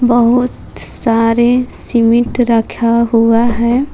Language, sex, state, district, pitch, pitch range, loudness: Hindi, female, Jharkhand, Palamu, 235 Hz, 230-245 Hz, -12 LUFS